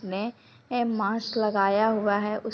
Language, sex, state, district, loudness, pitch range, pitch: Hindi, female, Chhattisgarh, Sukma, -26 LUFS, 205-225 Hz, 215 Hz